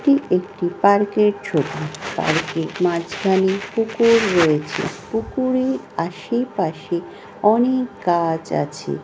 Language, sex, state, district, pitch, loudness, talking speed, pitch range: Bengali, female, West Bengal, North 24 Parganas, 200 Hz, -20 LUFS, 100 wpm, 175-230 Hz